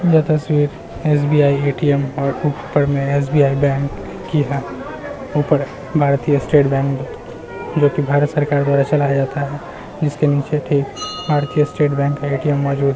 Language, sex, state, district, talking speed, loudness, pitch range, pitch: Hindi, male, Bihar, Muzaffarpur, 155 wpm, -17 LUFS, 140-150 Hz, 145 Hz